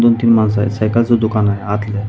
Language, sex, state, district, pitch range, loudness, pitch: Marathi, male, Maharashtra, Mumbai Suburban, 105-115 Hz, -15 LUFS, 110 Hz